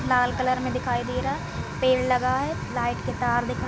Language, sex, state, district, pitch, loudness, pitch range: Hindi, female, Jharkhand, Sahebganj, 255 Hz, -25 LUFS, 250-255 Hz